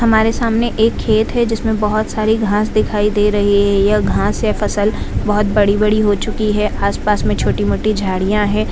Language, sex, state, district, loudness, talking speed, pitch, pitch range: Hindi, female, Bihar, Purnia, -15 LUFS, 180 wpm, 210 Hz, 205-220 Hz